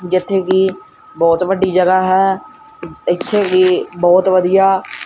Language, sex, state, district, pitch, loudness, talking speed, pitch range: Punjabi, male, Punjab, Kapurthala, 190 Hz, -14 LUFS, 120 wpm, 185-195 Hz